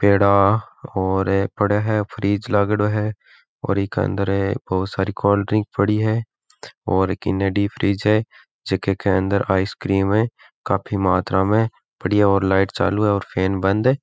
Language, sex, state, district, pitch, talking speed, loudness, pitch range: Marwari, male, Rajasthan, Nagaur, 100 Hz, 150 wpm, -20 LUFS, 95-105 Hz